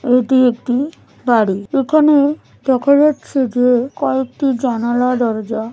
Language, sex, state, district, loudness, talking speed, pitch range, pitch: Bengali, male, West Bengal, Kolkata, -15 LUFS, 105 wpm, 240-275 Hz, 250 Hz